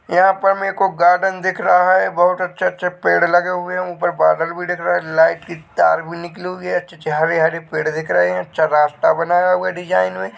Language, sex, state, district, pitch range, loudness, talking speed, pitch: Hindi, male, Chhattisgarh, Bilaspur, 160-180 Hz, -17 LUFS, 245 wpm, 175 Hz